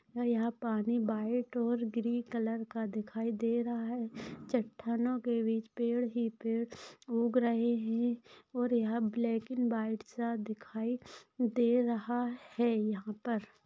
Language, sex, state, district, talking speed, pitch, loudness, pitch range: Hindi, female, Maharashtra, Chandrapur, 130 wpm, 235 Hz, -34 LUFS, 225-240 Hz